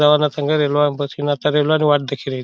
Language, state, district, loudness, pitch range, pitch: Bhili, Maharashtra, Dhule, -18 LUFS, 145-150 Hz, 145 Hz